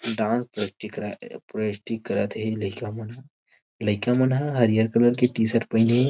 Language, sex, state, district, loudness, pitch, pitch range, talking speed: Chhattisgarhi, male, Chhattisgarh, Rajnandgaon, -24 LUFS, 115 Hz, 110-125 Hz, 155 wpm